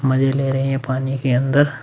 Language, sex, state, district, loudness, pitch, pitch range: Hindi, male, Uttar Pradesh, Budaun, -19 LUFS, 135 Hz, 130-135 Hz